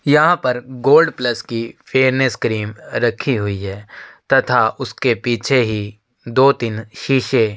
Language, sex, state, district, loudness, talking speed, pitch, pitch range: Hindi, male, Uttar Pradesh, Jyotiba Phule Nagar, -17 LUFS, 145 wpm, 120 Hz, 110-130 Hz